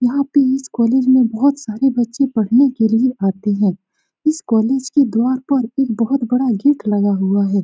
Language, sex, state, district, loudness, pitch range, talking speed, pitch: Hindi, female, Bihar, Saran, -16 LUFS, 220-270 Hz, 195 wpm, 245 Hz